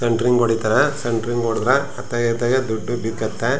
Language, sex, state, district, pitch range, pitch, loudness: Kannada, male, Karnataka, Chamarajanagar, 115-125 Hz, 120 Hz, -20 LUFS